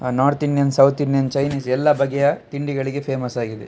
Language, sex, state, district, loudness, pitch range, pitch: Kannada, male, Karnataka, Dakshina Kannada, -19 LUFS, 130-145 Hz, 140 Hz